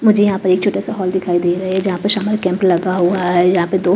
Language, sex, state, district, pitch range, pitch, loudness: Hindi, female, Chhattisgarh, Raipur, 180-200 Hz, 185 Hz, -15 LUFS